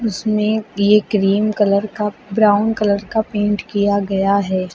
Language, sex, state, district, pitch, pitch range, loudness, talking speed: Hindi, female, Uttar Pradesh, Lucknow, 205 Hz, 200-215 Hz, -17 LUFS, 150 wpm